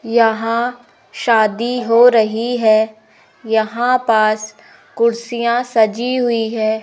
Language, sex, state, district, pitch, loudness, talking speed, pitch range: Hindi, female, Madhya Pradesh, Umaria, 230 Hz, -16 LUFS, 95 wpm, 220-240 Hz